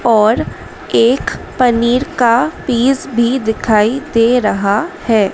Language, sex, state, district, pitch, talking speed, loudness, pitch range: Hindi, female, Madhya Pradesh, Dhar, 235 Hz, 110 wpm, -14 LUFS, 220-255 Hz